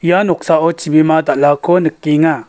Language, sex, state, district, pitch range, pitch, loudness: Garo, male, Meghalaya, West Garo Hills, 155-175 Hz, 160 Hz, -13 LUFS